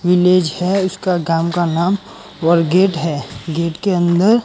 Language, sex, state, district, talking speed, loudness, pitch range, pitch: Hindi, male, Gujarat, Gandhinagar, 160 wpm, -16 LUFS, 165-190 Hz, 175 Hz